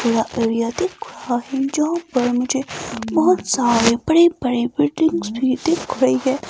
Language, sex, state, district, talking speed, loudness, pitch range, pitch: Hindi, female, Himachal Pradesh, Shimla, 110 wpm, -19 LUFS, 230-315 Hz, 255 Hz